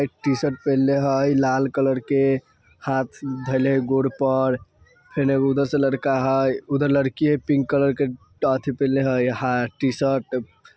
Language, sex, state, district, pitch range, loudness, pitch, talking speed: Bajjika, male, Bihar, Vaishali, 130-140 Hz, -22 LUFS, 135 Hz, 160 wpm